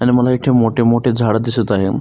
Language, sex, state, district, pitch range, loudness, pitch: Marathi, male, Maharashtra, Solapur, 115-125 Hz, -15 LUFS, 120 Hz